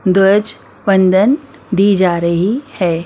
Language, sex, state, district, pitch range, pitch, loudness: Hindi, female, Maharashtra, Mumbai Suburban, 185-220 Hz, 195 Hz, -13 LUFS